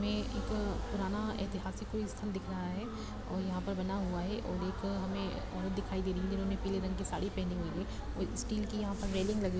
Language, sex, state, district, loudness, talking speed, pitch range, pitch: Hindi, female, Chhattisgarh, Raigarh, -37 LUFS, 245 wpm, 185-200 Hz, 195 Hz